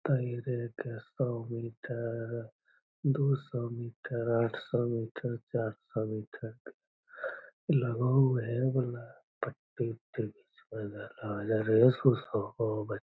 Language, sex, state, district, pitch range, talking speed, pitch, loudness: Magahi, male, Bihar, Lakhisarai, 115-130 Hz, 55 wpm, 120 Hz, -33 LUFS